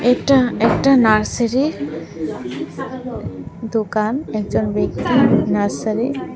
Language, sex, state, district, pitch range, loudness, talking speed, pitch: Bengali, female, Tripura, West Tripura, 215-260 Hz, -18 LUFS, 85 wpm, 235 Hz